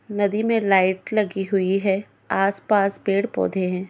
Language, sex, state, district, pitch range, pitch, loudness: Hindi, female, Goa, North and South Goa, 195-205 Hz, 195 Hz, -21 LUFS